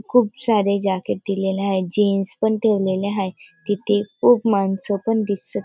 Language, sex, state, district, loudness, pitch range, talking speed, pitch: Marathi, female, Maharashtra, Dhule, -20 LUFS, 195-215 Hz, 160 wpm, 200 Hz